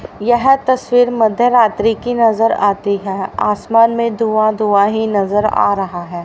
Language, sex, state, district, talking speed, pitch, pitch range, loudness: Hindi, female, Haryana, Rohtak, 155 wpm, 220 Hz, 200-235 Hz, -14 LUFS